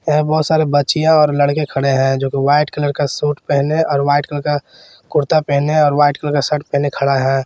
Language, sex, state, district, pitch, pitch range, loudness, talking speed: Hindi, male, Jharkhand, Garhwa, 145 Hz, 140-150 Hz, -15 LUFS, 225 wpm